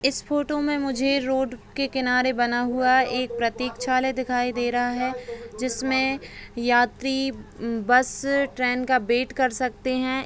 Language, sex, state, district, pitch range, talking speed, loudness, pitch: Hindi, female, Bihar, Begusarai, 245-265 Hz, 140 wpm, -24 LUFS, 255 Hz